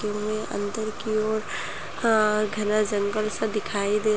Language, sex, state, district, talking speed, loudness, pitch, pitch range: Hindi, male, Chhattisgarh, Bastar, 130 wpm, -26 LUFS, 215 Hz, 210-215 Hz